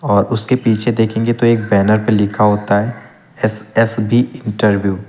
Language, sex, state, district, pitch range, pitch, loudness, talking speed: Hindi, male, Uttar Pradesh, Lucknow, 105-120 Hz, 110 Hz, -15 LUFS, 165 wpm